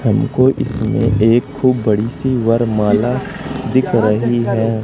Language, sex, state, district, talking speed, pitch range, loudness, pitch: Hindi, male, Madhya Pradesh, Katni, 135 wpm, 110-130 Hz, -15 LUFS, 120 Hz